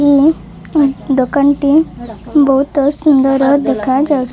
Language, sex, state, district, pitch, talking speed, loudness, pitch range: Odia, female, Odisha, Malkangiri, 280 Hz, 95 wpm, -12 LUFS, 270-290 Hz